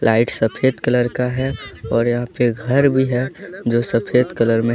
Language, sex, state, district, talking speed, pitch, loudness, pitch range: Hindi, male, Jharkhand, Deoghar, 190 wpm, 120 Hz, -18 LUFS, 115-130 Hz